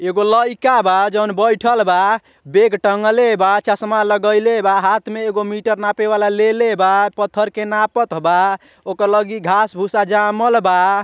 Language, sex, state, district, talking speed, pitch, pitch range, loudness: Bhojpuri, male, Uttar Pradesh, Ghazipur, 155 wpm, 210 Hz, 200-220 Hz, -15 LUFS